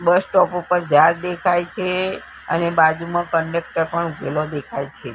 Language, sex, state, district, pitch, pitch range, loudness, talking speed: Gujarati, female, Gujarat, Gandhinagar, 170 Hz, 160-180 Hz, -19 LUFS, 150 wpm